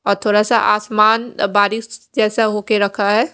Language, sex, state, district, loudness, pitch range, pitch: Hindi, female, Odisha, Khordha, -16 LUFS, 205-225 Hz, 215 Hz